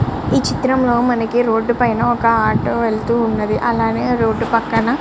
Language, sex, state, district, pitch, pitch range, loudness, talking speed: Telugu, male, Andhra Pradesh, Srikakulam, 230 Hz, 225-240 Hz, -16 LUFS, 170 wpm